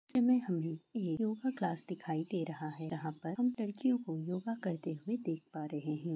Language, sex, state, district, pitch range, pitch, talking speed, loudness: Hindi, female, West Bengal, Jalpaiguri, 160-220 Hz, 170 Hz, 205 wpm, -37 LUFS